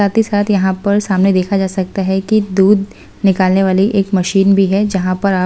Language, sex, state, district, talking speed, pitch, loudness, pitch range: Hindi, female, Delhi, New Delhi, 230 wpm, 195 Hz, -14 LUFS, 190-200 Hz